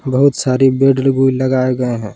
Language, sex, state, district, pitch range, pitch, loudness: Hindi, male, Jharkhand, Palamu, 130-135 Hz, 130 Hz, -14 LUFS